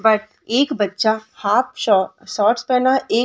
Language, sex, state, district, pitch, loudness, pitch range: Hindi, female, Bihar, Samastipur, 220 Hz, -19 LUFS, 210-255 Hz